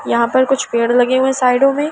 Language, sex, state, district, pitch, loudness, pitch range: Hindi, female, Delhi, New Delhi, 260 Hz, -14 LUFS, 245-265 Hz